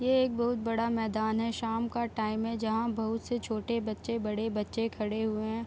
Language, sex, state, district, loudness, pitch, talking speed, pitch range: Hindi, female, Bihar, Saharsa, -32 LUFS, 225 Hz, 210 wpm, 220-230 Hz